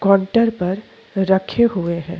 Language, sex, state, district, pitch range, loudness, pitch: Hindi, female, Chhattisgarh, Korba, 180-225 Hz, -19 LUFS, 190 Hz